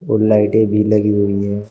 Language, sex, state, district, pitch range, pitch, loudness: Hindi, male, Uttar Pradesh, Shamli, 105-110 Hz, 105 Hz, -15 LUFS